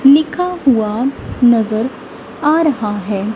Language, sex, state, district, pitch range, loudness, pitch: Hindi, female, Punjab, Kapurthala, 215-300 Hz, -15 LUFS, 255 Hz